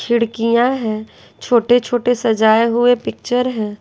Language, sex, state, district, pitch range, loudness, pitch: Hindi, female, Bihar, Patna, 225-245 Hz, -16 LUFS, 235 Hz